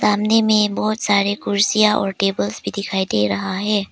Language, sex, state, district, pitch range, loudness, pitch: Hindi, female, Arunachal Pradesh, Papum Pare, 195-210 Hz, -18 LUFS, 205 Hz